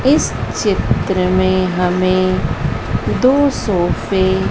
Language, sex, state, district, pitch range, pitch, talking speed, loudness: Hindi, female, Madhya Pradesh, Dhar, 185-190 Hz, 185 Hz, 95 wpm, -16 LUFS